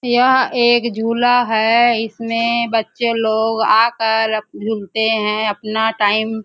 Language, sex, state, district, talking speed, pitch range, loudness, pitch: Hindi, female, Chhattisgarh, Bastar, 120 wpm, 220-235 Hz, -16 LUFS, 225 Hz